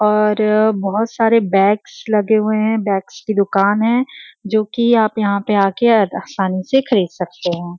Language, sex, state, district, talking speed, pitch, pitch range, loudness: Hindi, female, Uttar Pradesh, Varanasi, 170 wpm, 210 Hz, 195-220 Hz, -16 LUFS